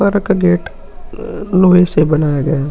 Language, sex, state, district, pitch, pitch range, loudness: Hindi, male, Uttar Pradesh, Hamirpur, 180 Hz, 150-190 Hz, -13 LUFS